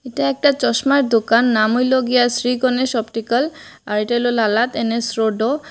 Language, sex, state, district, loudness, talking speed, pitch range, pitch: Bengali, female, Assam, Hailakandi, -17 LUFS, 180 wpm, 225-260 Hz, 245 Hz